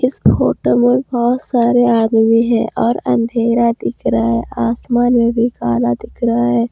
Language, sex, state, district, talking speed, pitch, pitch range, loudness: Hindi, female, Jharkhand, Deoghar, 170 wpm, 235 Hz, 225-240 Hz, -15 LUFS